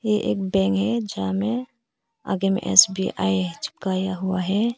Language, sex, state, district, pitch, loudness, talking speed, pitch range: Hindi, female, Arunachal Pradesh, Papum Pare, 195 Hz, -22 LUFS, 150 wpm, 185-215 Hz